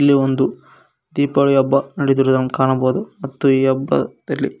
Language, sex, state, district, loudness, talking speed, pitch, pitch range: Kannada, male, Karnataka, Koppal, -17 LUFS, 115 wpm, 135 Hz, 130-140 Hz